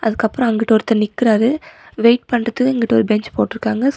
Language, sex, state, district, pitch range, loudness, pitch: Tamil, female, Tamil Nadu, Nilgiris, 220-245 Hz, -16 LUFS, 230 Hz